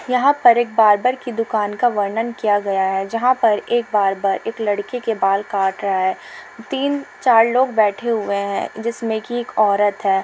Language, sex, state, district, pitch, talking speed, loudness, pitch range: Hindi, female, Uttar Pradesh, Etah, 220 Hz, 185 wpm, -18 LUFS, 200-240 Hz